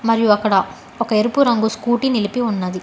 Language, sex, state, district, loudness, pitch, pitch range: Telugu, female, Telangana, Hyderabad, -17 LUFS, 225 Hz, 205-240 Hz